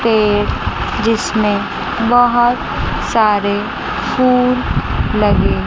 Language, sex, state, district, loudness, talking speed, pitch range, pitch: Hindi, female, Chandigarh, Chandigarh, -15 LUFS, 65 wpm, 210-245 Hz, 225 Hz